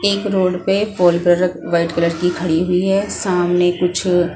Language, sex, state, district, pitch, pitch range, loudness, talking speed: Hindi, female, Punjab, Pathankot, 180 Hz, 175-190 Hz, -17 LUFS, 165 wpm